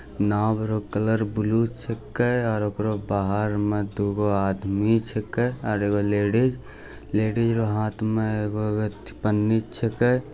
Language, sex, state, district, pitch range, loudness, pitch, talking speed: Angika, male, Bihar, Bhagalpur, 105-115 Hz, -24 LUFS, 110 Hz, 135 wpm